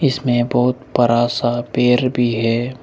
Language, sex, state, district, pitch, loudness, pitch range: Hindi, male, Arunachal Pradesh, Lower Dibang Valley, 120 Hz, -17 LUFS, 120-125 Hz